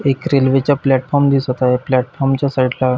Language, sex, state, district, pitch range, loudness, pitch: Marathi, male, Maharashtra, Pune, 130-140 Hz, -15 LUFS, 135 Hz